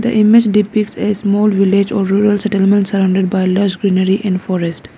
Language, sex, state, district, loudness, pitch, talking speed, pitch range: English, female, Arunachal Pradesh, Lower Dibang Valley, -13 LUFS, 200 Hz, 180 wpm, 190-210 Hz